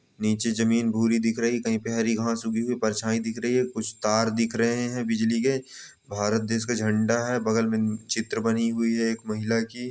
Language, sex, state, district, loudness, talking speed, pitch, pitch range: Hindi, male, Uttar Pradesh, Ghazipur, -25 LUFS, 220 wpm, 115 Hz, 110-115 Hz